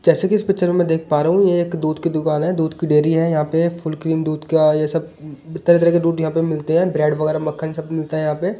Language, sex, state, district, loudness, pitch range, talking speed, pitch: Hindi, male, Delhi, New Delhi, -18 LUFS, 155-170 Hz, 295 wpm, 160 Hz